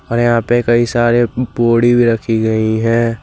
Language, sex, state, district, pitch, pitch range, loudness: Hindi, male, Jharkhand, Garhwa, 115 Hz, 115-120 Hz, -13 LUFS